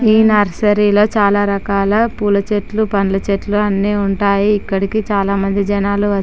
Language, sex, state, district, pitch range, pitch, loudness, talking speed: Telugu, female, Andhra Pradesh, Chittoor, 200-210 Hz, 205 Hz, -15 LUFS, 155 wpm